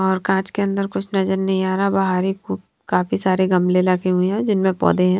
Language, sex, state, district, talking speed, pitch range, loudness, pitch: Hindi, female, Haryana, Rohtak, 230 wpm, 185-195 Hz, -19 LUFS, 190 Hz